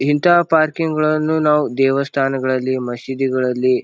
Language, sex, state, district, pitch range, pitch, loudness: Kannada, male, Karnataka, Bijapur, 130-155 Hz, 135 Hz, -17 LUFS